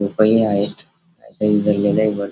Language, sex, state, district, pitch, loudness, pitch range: Marathi, male, Maharashtra, Dhule, 105 Hz, -17 LUFS, 100-110 Hz